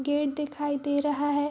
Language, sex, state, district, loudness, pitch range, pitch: Hindi, female, Bihar, Araria, -28 LUFS, 285-295 Hz, 290 Hz